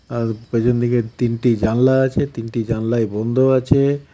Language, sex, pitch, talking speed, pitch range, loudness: Bengali, male, 120 Hz, 130 wpm, 115-130 Hz, -18 LUFS